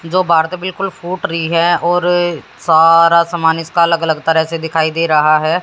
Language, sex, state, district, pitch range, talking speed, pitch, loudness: Hindi, female, Haryana, Jhajjar, 160-175 Hz, 200 wpm, 165 Hz, -13 LUFS